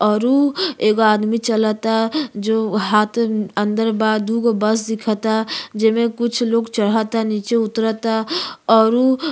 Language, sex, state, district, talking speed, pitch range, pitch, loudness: Bhojpuri, female, Uttar Pradesh, Gorakhpur, 140 wpm, 215-230 Hz, 225 Hz, -18 LUFS